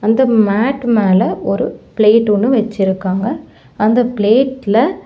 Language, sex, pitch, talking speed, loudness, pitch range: Tamil, female, 220 Hz, 130 wpm, -14 LUFS, 205-245 Hz